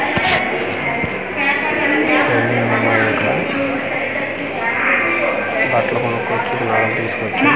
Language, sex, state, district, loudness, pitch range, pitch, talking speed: Telugu, male, Andhra Pradesh, Manyam, -16 LUFS, 275-280 Hz, 275 Hz, 30 wpm